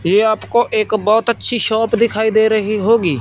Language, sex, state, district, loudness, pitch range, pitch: Hindi, male, Punjab, Fazilka, -15 LUFS, 215-230 Hz, 220 Hz